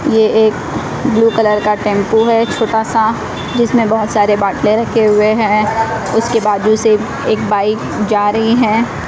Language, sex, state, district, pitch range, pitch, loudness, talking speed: Hindi, female, Odisha, Malkangiri, 210-225 Hz, 220 Hz, -13 LUFS, 160 wpm